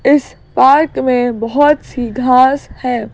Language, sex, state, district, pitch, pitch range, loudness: Hindi, female, Madhya Pradesh, Bhopal, 255 Hz, 245-285 Hz, -13 LUFS